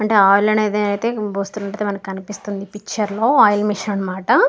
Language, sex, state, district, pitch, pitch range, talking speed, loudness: Telugu, female, Andhra Pradesh, Guntur, 205 Hz, 200-215 Hz, 145 wpm, -18 LUFS